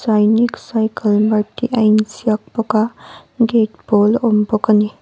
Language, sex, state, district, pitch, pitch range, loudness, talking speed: Mizo, female, Mizoram, Aizawl, 215 Hz, 215-230 Hz, -16 LUFS, 180 wpm